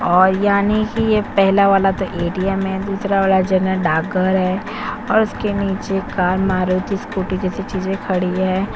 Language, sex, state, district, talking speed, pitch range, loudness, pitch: Hindi, female, Chhattisgarh, Korba, 180 wpm, 185-200 Hz, -18 LUFS, 195 Hz